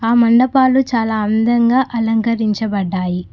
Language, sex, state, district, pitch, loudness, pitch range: Telugu, female, Telangana, Mahabubabad, 230 Hz, -15 LUFS, 215-240 Hz